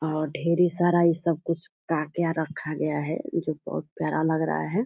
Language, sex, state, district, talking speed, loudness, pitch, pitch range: Hindi, female, Bihar, Purnia, 195 wpm, -26 LUFS, 165 Hz, 155-170 Hz